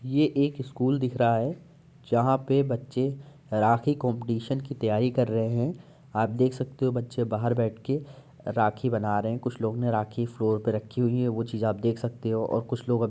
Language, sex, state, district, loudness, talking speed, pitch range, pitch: Hindi, male, Uttar Pradesh, Jyotiba Phule Nagar, -27 LUFS, 215 wpm, 115-135 Hz, 120 Hz